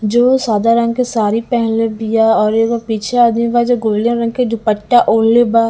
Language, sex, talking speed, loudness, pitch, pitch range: Bhojpuri, female, 200 wpm, -13 LUFS, 230 Hz, 220-240 Hz